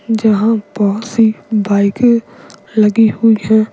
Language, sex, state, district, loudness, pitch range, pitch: Hindi, female, Bihar, Patna, -13 LUFS, 205-225 Hz, 220 Hz